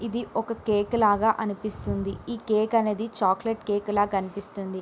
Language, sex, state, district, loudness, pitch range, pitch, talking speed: Telugu, female, Andhra Pradesh, Srikakulam, -26 LUFS, 200-225 Hz, 210 Hz, 150 wpm